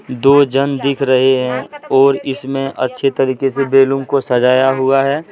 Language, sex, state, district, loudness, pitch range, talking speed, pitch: Hindi, male, Jharkhand, Deoghar, -14 LUFS, 130-140 Hz, 170 wpm, 135 Hz